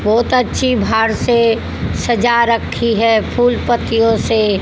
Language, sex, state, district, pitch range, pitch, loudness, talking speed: Hindi, female, Haryana, Rohtak, 225-240 Hz, 230 Hz, -14 LUFS, 130 wpm